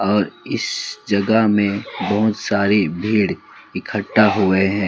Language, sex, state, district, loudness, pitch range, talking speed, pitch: Hindi, male, West Bengal, Alipurduar, -18 LUFS, 100-105 Hz, 125 wpm, 105 Hz